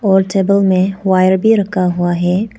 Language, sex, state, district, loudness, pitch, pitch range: Hindi, female, Arunachal Pradesh, Papum Pare, -13 LUFS, 190 Hz, 185-195 Hz